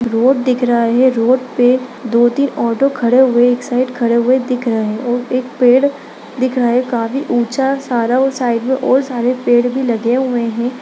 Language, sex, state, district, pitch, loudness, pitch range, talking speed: Hindi, female, Bihar, Darbhanga, 245 Hz, -14 LUFS, 240-255 Hz, 195 wpm